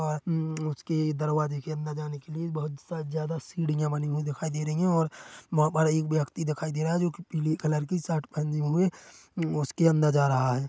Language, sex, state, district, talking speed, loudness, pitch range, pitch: Hindi, male, Chhattisgarh, Korba, 225 wpm, -28 LUFS, 150-160 Hz, 155 Hz